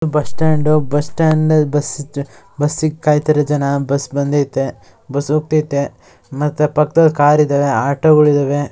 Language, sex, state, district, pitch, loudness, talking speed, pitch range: Kannada, male, Karnataka, Shimoga, 145 Hz, -15 LUFS, 125 wpm, 140-150 Hz